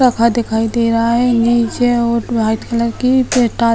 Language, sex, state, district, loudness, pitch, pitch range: Hindi, female, Bihar, Sitamarhi, -14 LUFS, 235 Hz, 230-245 Hz